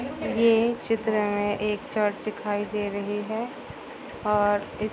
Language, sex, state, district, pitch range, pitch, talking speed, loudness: Hindi, female, Maharashtra, Dhule, 205-225 Hz, 210 Hz, 120 wpm, -26 LUFS